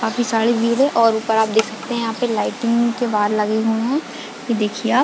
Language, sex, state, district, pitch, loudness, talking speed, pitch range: Hindi, female, Chhattisgarh, Bilaspur, 230 Hz, -19 LUFS, 260 wpm, 220-240 Hz